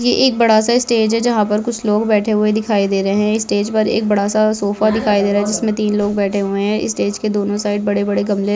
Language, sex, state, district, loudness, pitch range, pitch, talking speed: Hindi, male, Rajasthan, Churu, -16 LUFS, 205-220 Hz, 210 Hz, 285 wpm